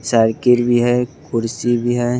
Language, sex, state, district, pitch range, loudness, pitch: Angika, male, Bihar, Begusarai, 115-120 Hz, -17 LUFS, 120 Hz